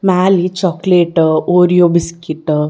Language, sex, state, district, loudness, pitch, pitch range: Kannada, female, Karnataka, Bijapur, -12 LUFS, 175 Hz, 165-180 Hz